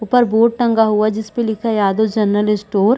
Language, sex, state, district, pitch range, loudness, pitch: Hindi, female, Chhattisgarh, Balrampur, 210-230 Hz, -16 LUFS, 220 Hz